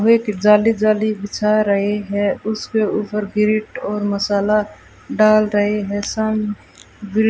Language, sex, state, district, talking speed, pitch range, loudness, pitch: Hindi, female, Rajasthan, Bikaner, 130 wpm, 205-215 Hz, -18 LUFS, 210 Hz